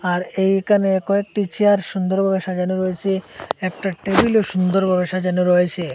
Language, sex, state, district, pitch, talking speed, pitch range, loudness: Bengali, male, Assam, Hailakandi, 190 Hz, 150 wpm, 180-195 Hz, -19 LUFS